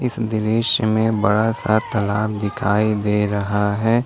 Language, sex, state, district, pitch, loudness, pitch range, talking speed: Hindi, male, Jharkhand, Ranchi, 110 Hz, -19 LUFS, 105-110 Hz, 150 wpm